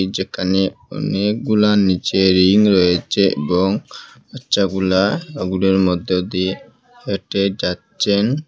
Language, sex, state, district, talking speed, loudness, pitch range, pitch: Bengali, male, Assam, Hailakandi, 85 wpm, -17 LUFS, 95-100 Hz, 95 Hz